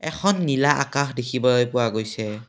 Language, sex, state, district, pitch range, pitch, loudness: Assamese, male, Assam, Kamrup Metropolitan, 120-145 Hz, 125 Hz, -22 LUFS